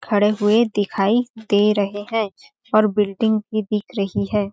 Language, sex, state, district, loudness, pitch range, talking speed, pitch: Hindi, female, Chhattisgarh, Balrampur, -20 LUFS, 205-220 Hz, 160 wpm, 210 Hz